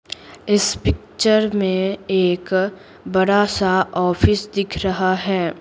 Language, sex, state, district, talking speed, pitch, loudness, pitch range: Hindi, female, Bihar, Patna, 105 wpm, 190 Hz, -19 LUFS, 185-200 Hz